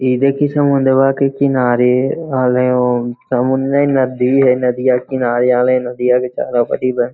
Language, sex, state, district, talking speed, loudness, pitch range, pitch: Hindi, male, Bihar, Lakhisarai, 125 wpm, -14 LUFS, 125-135 Hz, 125 Hz